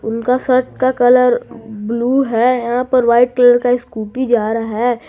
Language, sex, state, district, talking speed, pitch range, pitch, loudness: Hindi, female, Jharkhand, Garhwa, 175 wpm, 230-250 Hz, 245 Hz, -14 LUFS